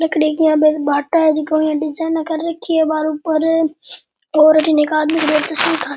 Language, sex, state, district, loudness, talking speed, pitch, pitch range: Rajasthani, male, Rajasthan, Nagaur, -16 LUFS, 110 wpm, 310 Hz, 305-320 Hz